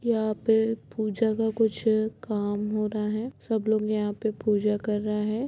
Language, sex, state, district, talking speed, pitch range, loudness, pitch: Hindi, female, Bihar, Sitamarhi, 185 wpm, 210-220 Hz, -27 LUFS, 215 Hz